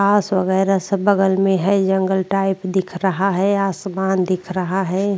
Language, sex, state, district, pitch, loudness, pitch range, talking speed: Hindi, female, Uttarakhand, Tehri Garhwal, 190 Hz, -18 LUFS, 190-195 Hz, 175 wpm